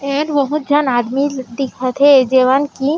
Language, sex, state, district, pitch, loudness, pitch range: Chhattisgarhi, female, Chhattisgarh, Raigarh, 275 Hz, -15 LUFS, 260-285 Hz